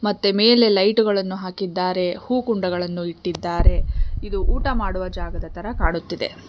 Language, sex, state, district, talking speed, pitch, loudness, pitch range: Kannada, female, Karnataka, Bangalore, 130 wpm, 185 Hz, -21 LUFS, 175-210 Hz